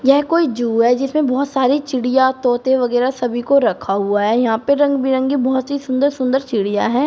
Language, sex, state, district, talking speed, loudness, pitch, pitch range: Hindi, female, Uttar Pradesh, Shamli, 210 wpm, -16 LUFS, 260 Hz, 240-275 Hz